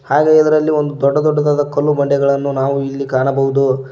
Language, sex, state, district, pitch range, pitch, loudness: Kannada, male, Karnataka, Koppal, 135-150 Hz, 140 Hz, -14 LUFS